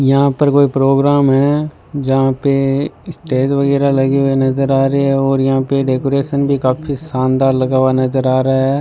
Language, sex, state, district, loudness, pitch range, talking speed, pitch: Hindi, male, Rajasthan, Bikaner, -14 LUFS, 135-140 Hz, 190 wpm, 135 Hz